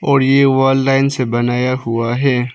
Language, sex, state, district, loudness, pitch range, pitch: Hindi, male, Arunachal Pradesh, Papum Pare, -14 LUFS, 120-135 Hz, 130 Hz